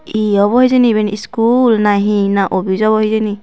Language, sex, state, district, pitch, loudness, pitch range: Chakma, female, Tripura, Unakoti, 215 Hz, -13 LUFS, 205-225 Hz